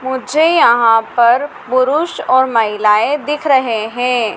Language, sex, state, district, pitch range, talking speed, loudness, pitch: Hindi, female, Madhya Pradesh, Dhar, 230-285 Hz, 125 wpm, -13 LUFS, 255 Hz